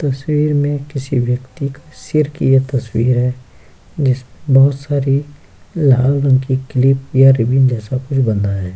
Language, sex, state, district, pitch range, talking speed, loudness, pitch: Hindi, male, Bihar, Kishanganj, 130-140 Hz, 160 wpm, -15 LUFS, 135 Hz